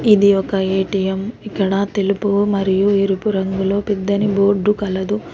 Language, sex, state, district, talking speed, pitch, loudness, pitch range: Telugu, female, Telangana, Hyderabad, 125 wpm, 200 Hz, -17 LUFS, 195-205 Hz